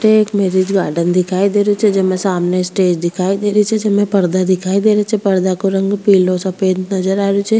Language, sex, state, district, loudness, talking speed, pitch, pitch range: Rajasthani, female, Rajasthan, Churu, -14 LUFS, 235 wpm, 195 Hz, 185-205 Hz